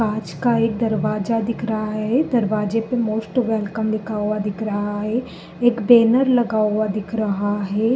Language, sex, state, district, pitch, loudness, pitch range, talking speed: Hindi, female, Uttar Pradesh, Jalaun, 215 Hz, -20 LUFS, 210-230 Hz, 175 wpm